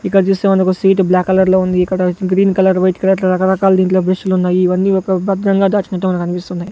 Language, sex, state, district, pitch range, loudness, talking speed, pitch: Telugu, male, Andhra Pradesh, Sri Satya Sai, 185-195 Hz, -14 LUFS, 195 wpm, 185 Hz